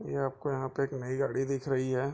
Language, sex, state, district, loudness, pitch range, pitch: Hindi, male, Bihar, Bhagalpur, -32 LUFS, 130-135 Hz, 135 Hz